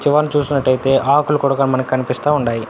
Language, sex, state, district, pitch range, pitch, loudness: Telugu, male, Andhra Pradesh, Anantapur, 130-145 Hz, 135 Hz, -16 LUFS